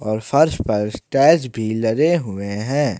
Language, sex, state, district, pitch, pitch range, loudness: Hindi, male, Jharkhand, Ranchi, 110 Hz, 105-140 Hz, -18 LUFS